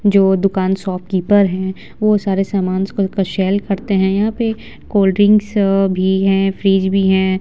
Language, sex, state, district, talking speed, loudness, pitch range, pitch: Hindi, female, Bihar, Vaishali, 160 wpm, -15 LUFS, 190-205 Hz, 195 Hz